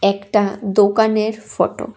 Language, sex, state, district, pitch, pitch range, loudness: Bengali, female, Tripura, West Tripura, 210 Hz, 200-215 Hz, -17 LUFS